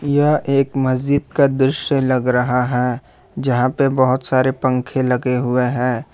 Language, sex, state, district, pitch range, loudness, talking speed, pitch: Hindi, male, Jharkhand, Ranchi, 125-140 Hz, -17 LUFS, 155 wpm, 130 Hz